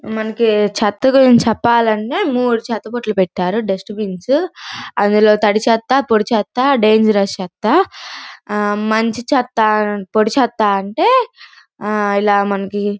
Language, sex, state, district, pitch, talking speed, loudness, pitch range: Telugu, female, Andhra Pradesh, Guntur, 215 Hz, 105 wpm, -15 LUFS, 205-240 Hz